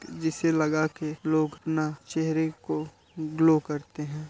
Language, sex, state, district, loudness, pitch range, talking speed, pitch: Hindi, male, Uttar Pradesh, Deoria, -28 LUFS, 150-160 Hz, 140 wpm, 155 Hz